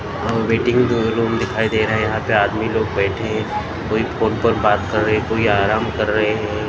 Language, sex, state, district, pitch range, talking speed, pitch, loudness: Hindi, male, Maharashtra, Mumbai Suburban, 105-115 Hz, 225 wpm, 110 Hz, -18 LUFS